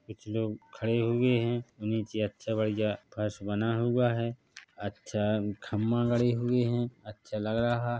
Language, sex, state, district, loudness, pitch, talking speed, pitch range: Hindi, male, Chhattisgarh, Bilaspur, -30 LUFS, 110 Hz, 165 wpm, 105-120 Hz